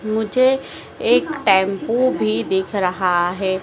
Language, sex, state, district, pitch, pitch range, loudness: Hindi, female, Madhya Pradesh, Dhar, 190 Hz, 185-225 Hz, -18 LUFS